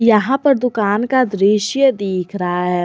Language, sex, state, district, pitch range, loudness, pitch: Hindi, female, Jharkhand, Garhwa, 195-255 Hz, -16 LUFS, 210 Hz